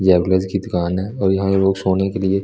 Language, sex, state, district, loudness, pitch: Hindi, male, Delhi, New Delhi, -18 LUFS, 95 Hz